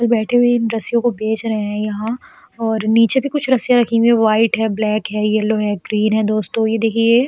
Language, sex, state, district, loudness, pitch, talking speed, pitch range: Hindi, female, Uttar Pradesh, Etah, -17 LUFS, 225 Hz, 255 wpm, 215-235 Hz